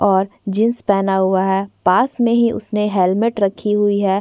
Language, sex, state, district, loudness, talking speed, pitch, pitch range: Hindi, female, Chhattisgarh, Korba, -17 LUFS, 185 wpm, 200 Hz, 195-225 Hz